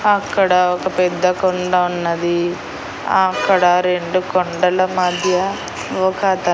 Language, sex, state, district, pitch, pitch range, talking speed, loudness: Telugu, female, Andhra Pradesh, Annamaya, 180 Hz, 180-185 Hz, 100 wpm, -17 LUFS